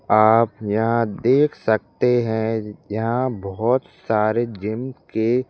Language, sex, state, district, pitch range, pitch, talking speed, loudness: Hindi, male, Madhya Pradesh, Bhopal, 110-120 Hz, 115 Hz, 110 wpm, -21 LUFS